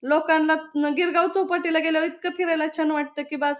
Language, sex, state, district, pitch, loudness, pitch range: Marathi, female, Maharashtra, Pune, 315 Hz, -23 LUFS, 300-340 Hz